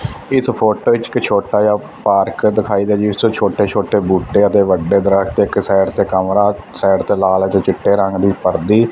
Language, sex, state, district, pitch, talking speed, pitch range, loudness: Punjabi, male, Punjab, Fazilka, 100 Hz, 180 wpm, 95-105 Hz, -14 LUFS